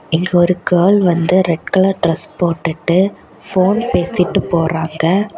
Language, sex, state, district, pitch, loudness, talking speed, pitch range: Tamil, female, Tamil Nadu, Kanyakumari, 175 Hz, -15 LUFS, 125 wpm, 165-190 Hz